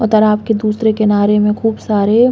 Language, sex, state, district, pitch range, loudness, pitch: Bundeli, female, Uttar Pradesh, Hamirpur, 210-220 Hz, -13 LUFS, 215 Hz